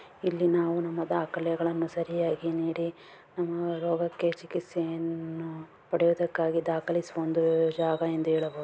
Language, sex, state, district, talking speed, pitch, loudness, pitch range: Kannada, female, Karnataka, Bijapur, 85 wpm, 165 Hz, -29 LUFS, 165-170 Hz